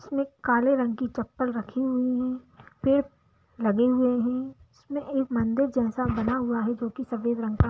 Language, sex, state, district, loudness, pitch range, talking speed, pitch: Bhojpuri, female, Bihar, Saran, -27 LUFS, 235-265 Hz, 185 wpm, 250 Hz